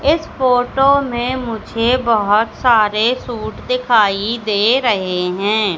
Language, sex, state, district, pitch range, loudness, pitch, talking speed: Hindi, female, Madhya Pradesh, Katni, 210-250 Hz, -16 LUFS, 230 Hz, 115 wpm